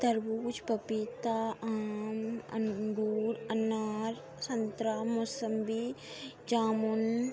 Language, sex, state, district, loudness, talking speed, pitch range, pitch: Hindi, female, Uttar Pradesh, Jalaun, -34 LUFS, 75 wpm, 220-230 Hz, 225 Hz